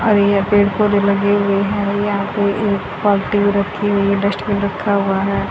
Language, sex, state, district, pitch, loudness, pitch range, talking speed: Hindi, female, Haryana, Charkhi Dadri, 200 Hz, -16 LUFS, 200-205 Hz, 220 wpm